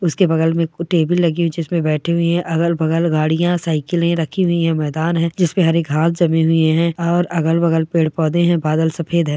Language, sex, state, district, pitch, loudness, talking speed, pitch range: Hindi, female, Bihar, Darbhanga, 165 Hz, -17 LUFS, 210 wpm, 160-170 Hz